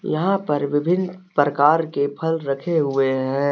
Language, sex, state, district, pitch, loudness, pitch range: Hindi, male, Jharkhand, Deoghar, 145 Hz, -20 LUFS, 140-165 Hz